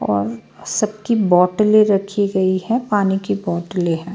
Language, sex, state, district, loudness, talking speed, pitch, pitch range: Hindi, female, Bihar, Patna, -18 LUFS, 160 wpm, 195 Hz, 180-210 Hz